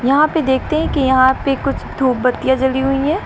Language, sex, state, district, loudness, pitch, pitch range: Hindi, female, Uttar Pradesh, Lucknow, -16 LUFS, 265 Hz, 260-290 Hz